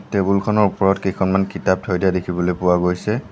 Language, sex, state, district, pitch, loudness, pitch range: Assamese, male, Assam, Sonitpur, 95 Hz, -19 LUFS, 90-100 Hz